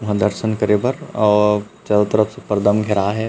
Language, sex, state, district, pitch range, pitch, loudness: Chhattisgarhi, male, Chhattisgarh, Rajnandgaon, 105-110 Hz, 105 Hz, -18 LUFS